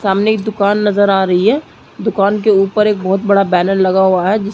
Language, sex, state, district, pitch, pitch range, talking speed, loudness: Hindi, female, Chhattisgarh, Sarguja, 200 Hz, 190-210 Hz, 240 wpm, -13 LUFS